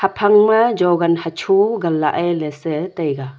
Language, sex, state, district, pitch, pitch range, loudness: Wancho, female, Arunachal Pradesh, Longding, 170 Hz, 155-195 Hz, -16 LUFS